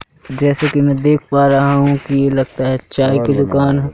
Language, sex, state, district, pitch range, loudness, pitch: Hindi, male, Madhya Pradesh, Katni, 135-145 Hz, -14 LUFS, 140 Hz